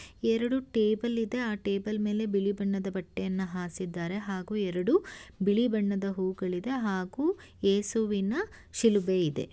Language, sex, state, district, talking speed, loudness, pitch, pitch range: Kannada, female, Karnataka, Shimoga, 120 wpm, -30 LUFS, 200 Hz, 190-225 Hz